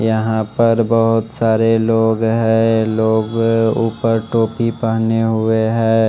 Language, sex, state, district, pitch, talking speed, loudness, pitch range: Hindi, male, Odisha, Malkangiri, 115 Hz, 120 wpm, -15 LUFS, 110-115 Hz